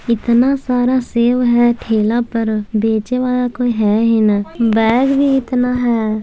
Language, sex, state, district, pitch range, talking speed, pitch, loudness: Maithili, female, Bihar, Samastipur, 225-250 Hz, 155 wpm, 240 Hz, -15 LUFS